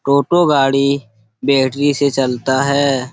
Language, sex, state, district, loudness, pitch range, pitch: Hindi, male, Bihar, Supaul, -15 LUFS, 130-140 Hz, 140 Hz